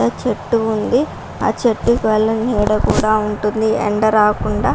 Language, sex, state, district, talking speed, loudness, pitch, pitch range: Telugu, female, Andhra Pradesh, Guntur, 140 wpm, -16 LUFS, 215 Hz, 210-225 Hz